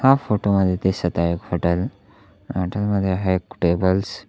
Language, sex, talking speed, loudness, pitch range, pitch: Marathi, male, 180 wpm, -21 LUFS, 90-100 Hz, 95 Hz